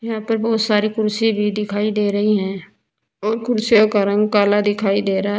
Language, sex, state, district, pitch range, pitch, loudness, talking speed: Hindi, female, Uttar Pradesh, Saharanpur, 205-220 Hz, 210 Hz, -18 LUFS, 210 wpm